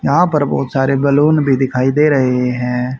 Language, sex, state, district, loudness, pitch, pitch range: Hindi, male, Haryana, Rohtak, -14 LUFS, 135 Hz, 130-145 Hz